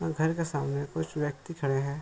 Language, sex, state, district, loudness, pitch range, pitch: Hindi, male, Bihar, Bhagalpur, -31 LUFS, 140-160 Hz, 150 Hz